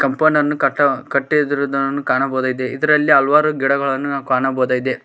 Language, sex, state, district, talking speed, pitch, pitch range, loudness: Kannada, male, Karnataka, Koppal, 120 wpm, 140 Hz, 135-150 Hz, -17 LUFS